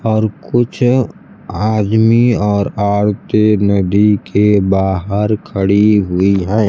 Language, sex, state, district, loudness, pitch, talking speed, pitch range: Hindi, male, Bihar, Kaimur, -13 LUFS, 105 Hz, 100 wpm, 100-110 Hz